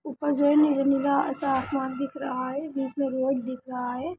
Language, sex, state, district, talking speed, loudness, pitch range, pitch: Hindi, female, Bihar, Sitamarhi, 200 wpm, -26 LUFS, 265-285 Hz, 275 Hz